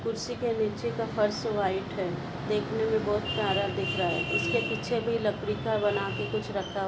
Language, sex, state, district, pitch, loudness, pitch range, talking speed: Hindi, female, Maharashtra, Solapur, 210 Hz, -29 LUFS, 205-225 Hz, 200 wpm